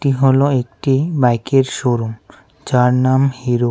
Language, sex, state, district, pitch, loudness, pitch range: Bengali, male, Tripura, West Tripura, 130 Hz, -16 LUFS, 120-135 Hz